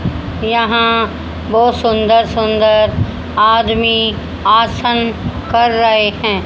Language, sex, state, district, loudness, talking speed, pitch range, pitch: Hindi, female, Haryana, Charkhi Dadri, -13 LUFS, 85 wpm, 220-230 Hz, 225 Hz